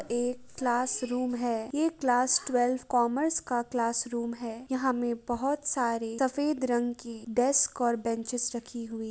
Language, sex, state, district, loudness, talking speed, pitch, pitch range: Hindi, female, Uttar Pradesh, Jalaun, -29 LUFS, 165 wpm, 245 Hz, 235-260 Hz